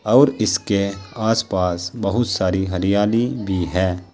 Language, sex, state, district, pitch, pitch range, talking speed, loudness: Hindi, male, Uttar Pradesh, Saharanpur, 100 Hz, 90-110 Hz, 130 wpm, -20 LUFS